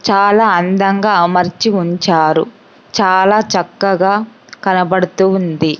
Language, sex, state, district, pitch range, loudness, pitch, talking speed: Telugu, female, Andhra Pradesh, Sri Satya Sai, 180-205 Hz, -13 LUFS, 190 Hz, 85 wpm